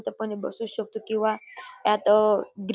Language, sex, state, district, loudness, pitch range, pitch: Marathi, female, Maharashtra, Dhule, -25 LUFS, 210-225 Hz, 220 Hz